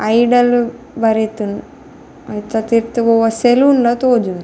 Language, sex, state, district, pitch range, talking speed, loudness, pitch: Tulu, female, Karnataka, Dakshina Kannada, 220-245 Hz, 95 wpm, -14 LUFS, 230 Hz